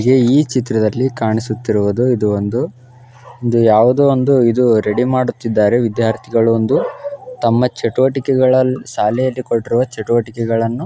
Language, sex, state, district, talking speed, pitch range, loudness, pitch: Kannada, male, Karnataka, Belgaum, 95 wpm, 115-130 Hz, -15 LUFS, 120 Hz